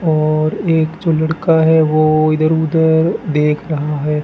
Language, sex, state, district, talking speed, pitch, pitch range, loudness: Hindi, male, Rajasthan, Bikaner, 155 wpm, 155 Hz, 155-160 Hz, -14 LUFS